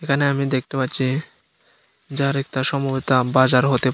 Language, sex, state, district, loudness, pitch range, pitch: Bengali, male, Tripura, Unakoti, -20 LUFS, 130-140 Hz, 135 Hz